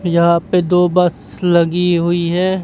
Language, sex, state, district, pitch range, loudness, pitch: Hindi, male, Bihar, Kaimur, 170-180 Hz, -15 LUFS, 175 Hz